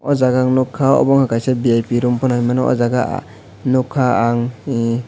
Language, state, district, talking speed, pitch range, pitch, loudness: Kokborok, Tripura, West Tripura, 215 wpm, 120-130 Hz, 125 Hz, -16 LUFS